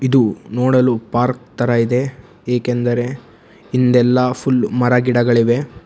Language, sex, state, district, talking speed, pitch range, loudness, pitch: Kannada, male, Karnataka, Bangalore, 90 wpm, 120-125 Hz, -16 LUFS, 125 Hz